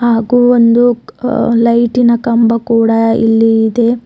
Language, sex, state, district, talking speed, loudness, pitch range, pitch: Kannada, female, Karnataka, Bidar, 105 wpm, -11 LUFS, 225-240 Hz, 235 Hz